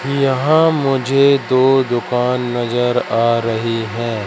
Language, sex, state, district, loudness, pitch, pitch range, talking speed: Hindi, male, Madhya Pradesh, Katni, -15 LUFS, 125 Hz, 115-135 Hz, 110 wpm